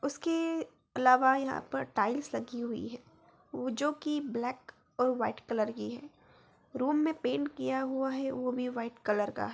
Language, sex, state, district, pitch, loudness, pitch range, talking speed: Hindi, female, Bihar, Gaya, 255 Hz, -32 LUFS, 235-275 Hz, 180 wpm